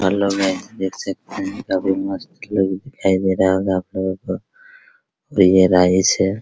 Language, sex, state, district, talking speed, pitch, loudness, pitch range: Hindi, male, Bihar, Araria, 185 wpm, 95 Hz, -19 LUFS, 95-100 Hz